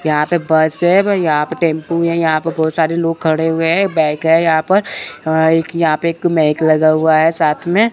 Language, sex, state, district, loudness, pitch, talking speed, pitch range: Hindi, male, Chandigarh, Chandigarh, -14 LUFS, 160 Hz, 235 wpm, 155-170 Hz